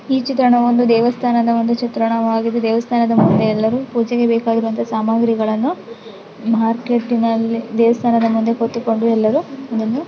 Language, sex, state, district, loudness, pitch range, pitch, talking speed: Kannada, female, Karnataka, Dakshina Kannada, -16 LUFS, 225-240 Hz, 230 Hz, 120 wpm